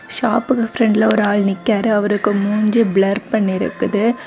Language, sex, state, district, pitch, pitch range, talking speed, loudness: Tamil, female, Tamil Nadu, Kanyakumari, 215 Hz, 205-225 Hz, 140 wpm, -16 LUFS